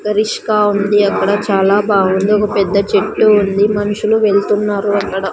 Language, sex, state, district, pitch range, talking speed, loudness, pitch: Telugu, female, Andhra Pradesh, Sri Satya Sai, 200-210 Hz, 135 wpm, -13 LUFS, 205 Hz